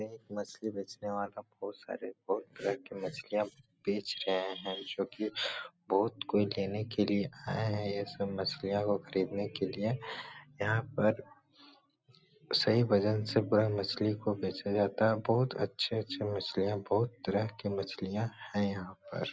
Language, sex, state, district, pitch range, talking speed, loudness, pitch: Hindi, male, Bihar, Supaul, 100-110 Hz, 155 wpm, -34 LUFS, 105 Hz